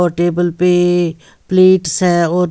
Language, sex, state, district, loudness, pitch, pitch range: Hindi, female, Bihar, West Champaran, -13 LUFS, 175 Hz, 175-180 Hz